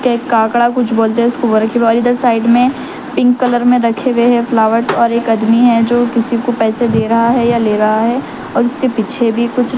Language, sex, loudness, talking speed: Urdu, male, -12 LUFS, 220 wpm